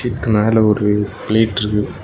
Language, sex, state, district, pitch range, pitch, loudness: Tamil, male, Tamil Nadu, Nilgiris, 105-110 Hz, 105 Hz, -16 LUFS